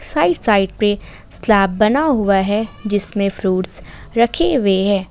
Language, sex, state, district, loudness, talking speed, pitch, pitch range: Hindi, female, Jharkhand, Ranchi, -17 LUFS, 140 wpm, 205 Hz, 195-230 Hz